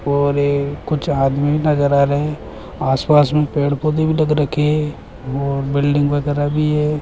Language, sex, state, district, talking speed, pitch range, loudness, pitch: Hindi, male, Rajasthan, Jaipur, 180 wpm, 140-150 Hz, -17 LUFS, 145 Hz